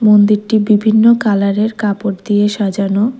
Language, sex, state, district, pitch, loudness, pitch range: Bengali, female, Tripura, West Tripura, 210 Hz, -13 LUFS, 205-215 Hz